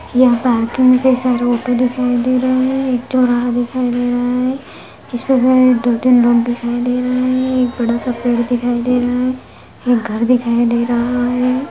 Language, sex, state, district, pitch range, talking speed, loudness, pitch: Hindi, female, Bihar, Lakhisarai, 240-255 Hz, 190 wpm, -15 LUFS, 245 Hz